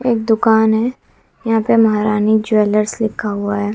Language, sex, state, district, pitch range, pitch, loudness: Hindi, female, Bihar, West Champaran, 210-225 Hz, 220 Hz, -15 LUFS